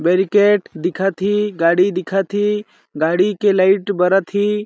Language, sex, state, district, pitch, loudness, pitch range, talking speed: Awadhi, male, Chhattisgarh, Balrampur, 195 Hz, -17 LUFS, 185-205 Hz, 140 wpm